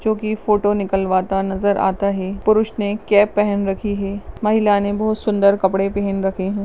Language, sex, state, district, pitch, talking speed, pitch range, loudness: Hindi, male, Maharashtra, Sindhudurg, 200 Hz, 190 wpm, 195-210 Hz, -18 LUFS